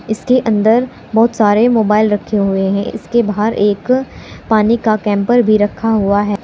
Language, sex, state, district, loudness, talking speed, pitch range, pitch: Hindi, female, Uttar Pradesh, Saharanpur, -13 LUFS, 170 wpm, 205-230 Hz, 215 Hz